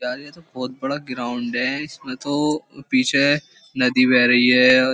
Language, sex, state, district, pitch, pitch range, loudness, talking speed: Hindi, male, Uttar Pradesh, Jyotiba Phule Nagar, 130 Hz, 125-145 Hz, -19 LUFS, 195 wpm